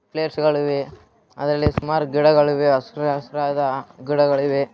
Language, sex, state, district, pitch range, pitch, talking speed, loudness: Kannada, male, Karnataka, Raichur, 140-150 Hz, 145 Hz, 125 wpm, -20 LUFS